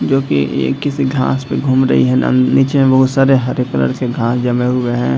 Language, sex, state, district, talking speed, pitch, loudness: Hindi, male, Bihar, Madhepura, 245 wpm, 125 Hz, -14 LUFS